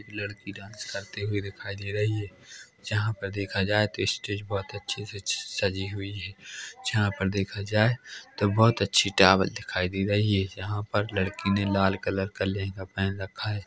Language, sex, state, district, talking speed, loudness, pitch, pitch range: Hindi, male, Chhattisgarh, Korba, 195 wpm, -27 LUFS, 100 Hz, 95-105 Hz